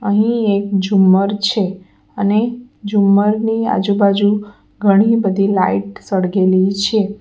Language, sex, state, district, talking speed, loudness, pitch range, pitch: Gujarati, female, Gujarat, Valsad, 110 wpm, -15 LUFS, 195-210 Hz, 200 Hz